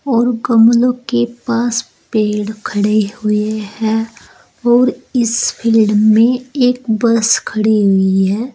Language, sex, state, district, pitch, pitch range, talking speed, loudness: Hindi, female, Uttar Pradesh, Saharanpur, 230 Hz, 215-240 Hz, 120 wpm, -14 LUFS